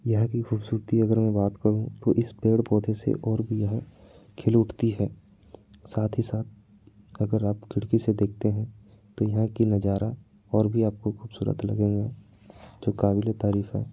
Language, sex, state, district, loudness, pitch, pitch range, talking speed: Hindi, male, Jharkhand, Sahebganj, -26 LUFS, 110 Hz, 105-110 Hz, 170 wpm